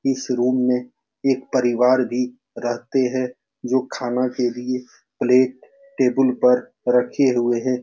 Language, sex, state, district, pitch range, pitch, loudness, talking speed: Hindi, male, Bihar, Saran, 125-130 Hz, 125 Hz, -21 LUFS, 140 wpm